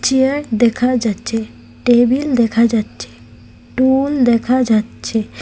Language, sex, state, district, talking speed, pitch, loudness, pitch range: Bengali, female, Assam, Hailakandi, 100 wpm, 235 Hz, -15 LUFS, 215-255 Hz